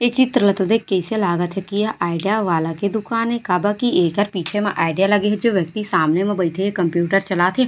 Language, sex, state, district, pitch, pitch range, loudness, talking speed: Chhattisgarhi, female, Chhattisgarh, Raigarh, 195 Hz, 175-215 Hz, -19 LUFS, 250 wpm